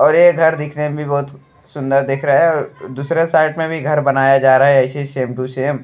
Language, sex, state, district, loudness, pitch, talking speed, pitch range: Bhojpuri, male, Uttar Pradesh, Deoria, -15 LUFS, 140 Hz, 255 wpm, 135-155 Hz